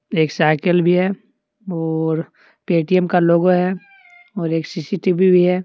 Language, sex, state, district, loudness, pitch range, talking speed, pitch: Hindi, male, Jharkhand, Deoghar, -17 LUFS, 165-185 Hz, 150 wpm, 180 Hz